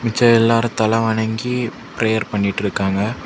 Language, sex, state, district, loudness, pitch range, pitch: Tamil, male, Tamil Nadu, Kanyakumari, -18 LUFS, 105-115 Hz, 110 Hz